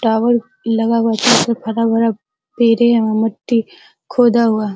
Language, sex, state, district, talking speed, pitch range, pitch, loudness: Hindi, female, Uttar Pradesh, Hamirpur, 75 wpm, 225-235 Hz, 230 Hz, -15 LUFS